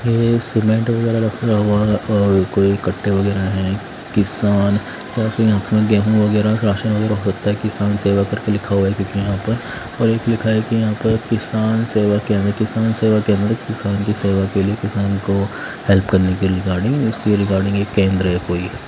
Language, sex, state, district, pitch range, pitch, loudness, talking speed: Hindi, male, Bihar, West Champaran, 100-110 Hz, 105 Hz, -17 LUFS, 180 wpm